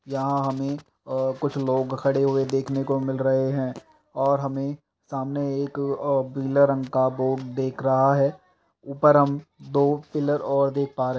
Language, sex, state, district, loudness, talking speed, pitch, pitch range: Hindi, male, Uttar Pradesh, Etah, -24 LUFS, 175 wpm, 135 Hz, 135-140 Hz